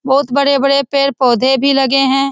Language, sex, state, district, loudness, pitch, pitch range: Hindi, female, Bihar, Lakhisarai, -12 LUFS, 275 Hz, 265-275 Hz